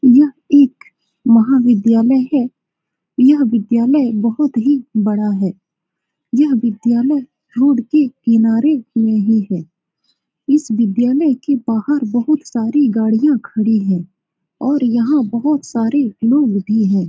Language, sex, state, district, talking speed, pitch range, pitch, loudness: Hindi, female, Bihar, Saran, 125 wpm, 220-280 Hz, 235 Hz, -15 LUFS